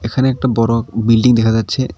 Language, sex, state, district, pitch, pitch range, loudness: Bengali, male, West Bengal, Cooch Behar, 115 Hz, 115-130 Hz, -14 LUFS